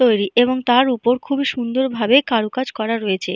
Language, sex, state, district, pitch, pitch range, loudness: Bengali, female, Jharkhand, Jamtara, 245 Hz, 225-255 Hz, -18 LUFS